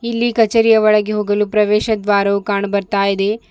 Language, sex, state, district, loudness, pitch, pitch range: Kannada, female, Karnataka, Bidar, -15 LUFS, 210 Hz, 200-220 Hz